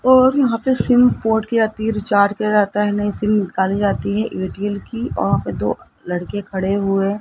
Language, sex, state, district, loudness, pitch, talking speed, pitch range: Hindi, male, Rajasthan, Jaipur, -18 LUFS, 210 Hz, 215 wpm, 200-225 Hz